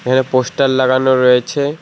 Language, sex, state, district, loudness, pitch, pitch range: Bengali, male, West Bengal, Alipurduar, -14 LUFS, 130 Hz, 130-135 Hz